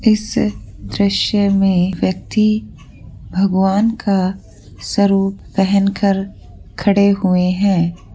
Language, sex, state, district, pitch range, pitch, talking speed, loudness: Hindi, female, Rajasthan, Churu, 180-200 Hz, 195 Hz, 80 wpm, -16 LUFS